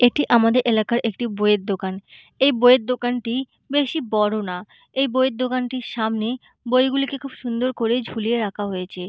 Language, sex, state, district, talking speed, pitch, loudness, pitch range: Bengali, female, West Bengal, Malda, 150 wpm, 240 Hz, -21 LUFS, 215-255 Hz